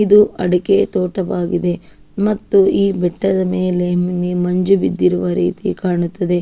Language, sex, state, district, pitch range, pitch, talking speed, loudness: Kannada, female, Karnataka, Shimoga, 175-195 Hz, 180 Hz, 110 wpm, -16 LUFS